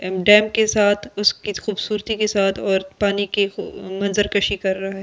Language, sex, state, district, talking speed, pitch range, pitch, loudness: Hindi, female, Delhi, New Delhi, 145 wpm, 195-210 Hz, 205 Hz, -19 LUFS